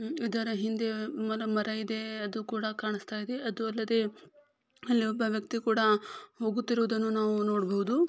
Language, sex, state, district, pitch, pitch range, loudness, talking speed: Kannada, female, Karnataka, Gulbarga, 220 Hz, 215-225 Hz, -31 LUFS, 135 wpm